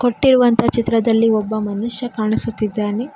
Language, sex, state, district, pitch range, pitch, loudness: Kannada, female, Karnataka, Koppal, 215-240 Hz, 225 Hz, -17 LUFS